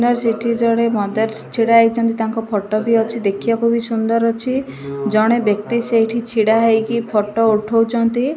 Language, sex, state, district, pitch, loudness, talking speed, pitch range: Odia, female, Odisha, Malkangiri, 230 Hz, -17 LUFS, 145 wpm, 220-235 Hz